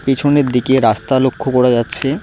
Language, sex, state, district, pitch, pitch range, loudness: Bengali, male, West Bengal, Cooch Behar, 130 Hz, 125-135 Hz, -14 LUFS